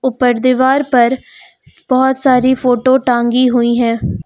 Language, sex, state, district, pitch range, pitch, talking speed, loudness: Hindi, female, Uttar Pradesh, Lucknow, 245-260 Hz, 255 Hz, 125 wpm, -12 LUFS